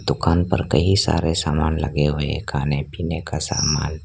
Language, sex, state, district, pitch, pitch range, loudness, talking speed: Hindi, male, Arunachal Pradesh, Lower Dibang Valley, 80 Hz, 75-85 Hz, -21 LUFS, 165 wpm